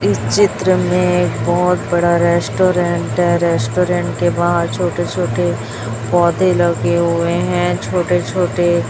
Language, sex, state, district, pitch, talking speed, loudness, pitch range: Hindi, female, Chhattisgarh, Raipur, 175 Hz, 120 wpm, -15 LUFS, 170-180 Hz